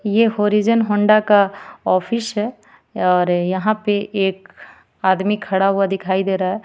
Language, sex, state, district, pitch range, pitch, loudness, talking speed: Hindi, female, Jharkhand, Ranchi, 190-215 Hz, 205 Hz, -18 LUFS, 155 wpm